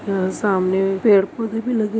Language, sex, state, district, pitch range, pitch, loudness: Hindi, female, Chhattisgarh, Bastar, 190-225 Hz, 200 Hz, -19 LUFS